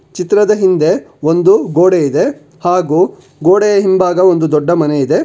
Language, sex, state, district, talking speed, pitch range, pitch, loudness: Kannada, male, Karnataka, Bangalore, 135 wpm, 160-190 Hz, 180 Hz, -12 LUFS